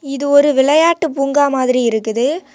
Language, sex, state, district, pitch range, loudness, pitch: Tamil, female, Tamil Nadu, Kanyakumari, 260-295 Hz, -14 LUFS, 275 Hz